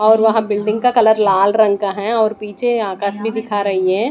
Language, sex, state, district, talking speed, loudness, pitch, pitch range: Hindi, female, Odisha, Nuapada, 235 wpm, -16 LUFS, 215 Hz, 200-220 Hz